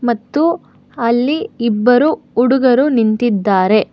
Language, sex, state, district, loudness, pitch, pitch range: Kannada, female, Karnataka, Bangalore, -14 LUFS, 240 Hz, 225-270 Hz